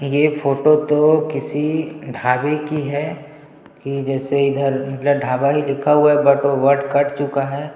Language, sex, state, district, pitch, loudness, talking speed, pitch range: Hindi, male, Chhattisgarh, Jashpur, 145 Hz, -18 LUFS, 160 wpm, 140-150 Hz